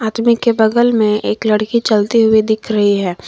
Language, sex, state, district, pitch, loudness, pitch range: Hindi, female, Jharkhand, Garhwa, 220 Hz, -13 LUFS, 210-230 Hz